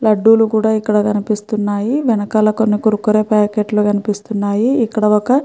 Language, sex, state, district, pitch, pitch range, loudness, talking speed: Telugu, female, Andhra Pradesh, Chittoor, 215 Hz, 210-220 Hz, -15 LUFS, 145 wpm